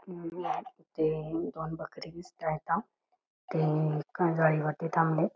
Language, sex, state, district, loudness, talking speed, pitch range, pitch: Marathi, female, Karnataka, Belgaum, -31 LUFS, 65 wpm, 155-175 Hz, 165 Hz